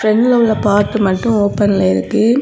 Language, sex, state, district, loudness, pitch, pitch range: Tamil, female, Tamil Nadu, Kanyakumari, -13 LUFS, 215 Hz, 200-225 Hz